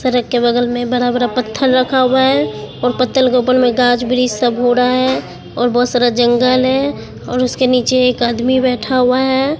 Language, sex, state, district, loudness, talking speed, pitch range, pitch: Hindi, female, Bihar, Katihar, -14 LUFS, 205 wpm, 245-255 Hz, 250 Hz